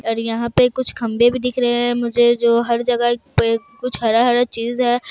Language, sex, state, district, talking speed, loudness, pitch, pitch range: Hindi, female, Bihar, Kishanganj, 210 wpm, -17 LUFS, 240 Hz, 230-245 Hz